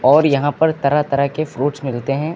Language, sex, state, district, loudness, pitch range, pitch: Hindi, male, Uttar Pradesh, Lucknow, -17 LUFS, 140-155 Hz, 145 Hz